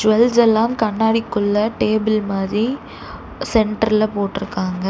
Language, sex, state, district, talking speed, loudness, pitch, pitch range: Tamil, female, Tamil Nadu, Chennai, 85 wpm, -18 LUFS, 215 Hz, 205-225 Hz